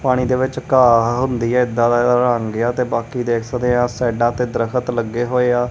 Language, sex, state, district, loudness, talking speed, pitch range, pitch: Punjabi, male, Punjab, Kapurthala, -17 LUFS, 265 wpm, 120-125 Hz, 120 Hz